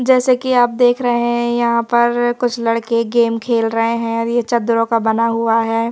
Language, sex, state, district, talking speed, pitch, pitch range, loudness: Hindi, female, Madhya Pradesh, Bhopal, 215 wpm, 235 Hz, 230-240 Hz, -16 LUFS